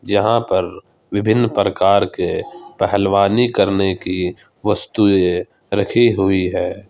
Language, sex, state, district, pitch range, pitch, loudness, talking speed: Hindi, male, Jharkhand, Ranchi, 95-120 Hz, 100 Hz, -17 LUFS, 105 wpm